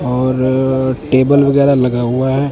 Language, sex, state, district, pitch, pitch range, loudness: Hindi, male, Punjab, Kapurthala, 130 Hz, 130-140 Hz, -13 LUFS